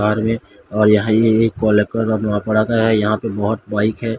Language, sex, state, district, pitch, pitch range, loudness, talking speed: Hindi, male, Odisha, Sambalpur, 110 Hz, 105-110 Hz, -17 LUFS, 130 wpm